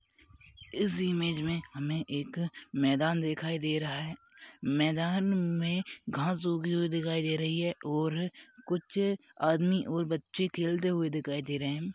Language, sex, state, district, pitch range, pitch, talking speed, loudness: Hindi, male, Chhattisgarh, Raigarh, 155-175 Hz, 165 Hz, 150 wpm, -32 LUFS